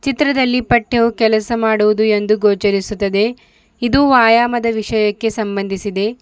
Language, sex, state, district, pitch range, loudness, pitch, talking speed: Kannada, female, Karnataka, Bidar, 210-240 Hz, -15 LUFS, 220 Hz, 95 wpm